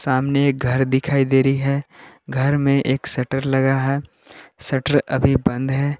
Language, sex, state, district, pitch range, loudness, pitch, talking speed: Hindi, male, Jharkhand, Palamu, 130-140 Hz, -19 LUFS, 135 Hz, 170 wpm